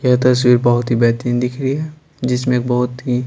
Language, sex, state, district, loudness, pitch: Hindi, male, Bihar, Patna, -16 LUFS, 125 Hz